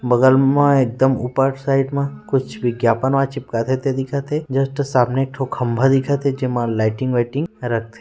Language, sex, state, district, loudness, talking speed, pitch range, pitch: Chhattisgarhi, male, Chhattisgarh, Rajnandgaon, -19 LUFS, 170 wpm, 120-135 Hz, 135 Hz